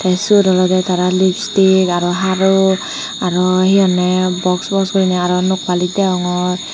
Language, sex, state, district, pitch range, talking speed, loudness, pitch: Chakma, female, Tripura, Unakoti, 180-190 Hz, 150 wpm, -14 LUFS, 185 Hz